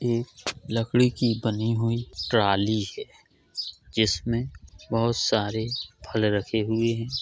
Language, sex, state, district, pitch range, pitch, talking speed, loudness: Hindi, male, Uttar Pradesh, Jalaun, 110-115 Hz, 115 Hz, 115 wpm, -26 LUFS